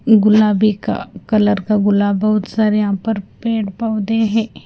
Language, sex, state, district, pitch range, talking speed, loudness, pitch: Hindi, female, Punjab, Fazilka, 205-220 Hz, 155 wpm, -16 LUFS, 215 Hz